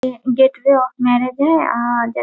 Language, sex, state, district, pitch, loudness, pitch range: Hindi, female, Bihar, Muzaffarpur, 255 Hz, -16 LUFS, 245-265 Hz